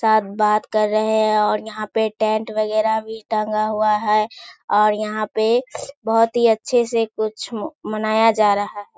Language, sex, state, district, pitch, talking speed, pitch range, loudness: Hindi, female, Bihar, Kishanganj, 215 Hz, 165 wpm, 215-220 Hz, -19 LUFS